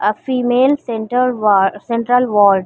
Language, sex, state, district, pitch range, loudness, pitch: Hindi, female, Chhattisgarh, Bilaspur, 205-250 Hz, -15 LUFS, 230 Hz